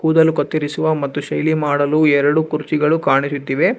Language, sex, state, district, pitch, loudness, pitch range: Kannada, male, Karnataka, Bangalore, 150 Hz, -17 LUFS, 145-155 Hz